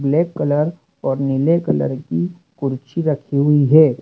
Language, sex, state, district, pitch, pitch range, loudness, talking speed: Hindi, male, Madhya Pradesh, Dhar, 145 Hz, 135-165 Hz, -18 LUFS, 150 wpm